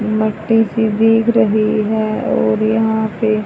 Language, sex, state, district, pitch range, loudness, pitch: Hindi, female, Haryana, Charkhi Dadri, 215-225 Hz, -15 LUFS, 220 Hz